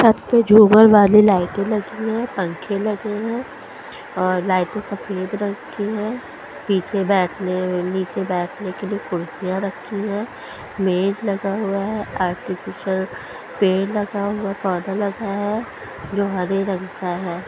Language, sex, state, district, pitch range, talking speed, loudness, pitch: Hindi, female, Haryana, Charkhi Dadri, 185-210 Hz, 150 wpm, -20 LUFS, 200 Hz